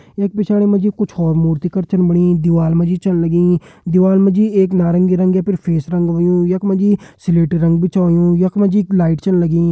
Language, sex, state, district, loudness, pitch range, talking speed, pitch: Hindi, male, Uttarakhand, Tehri Garhwal, -14 LUFS, 170-195 Hz, 245 wpm, 180 Hz